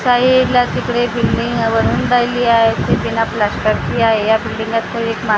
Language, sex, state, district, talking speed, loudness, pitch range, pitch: Marathi, female, Maharashtra, Gondia, 120 wpm, -15 LUFS, 225-245 Hz, 230 Hz